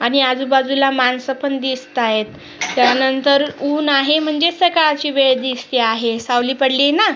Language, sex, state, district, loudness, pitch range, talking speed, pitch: Marathi, female, Maharashtra, Sindhudurg, -16 LUFS, 255-285 Hz, 140 wpm, 270 Hz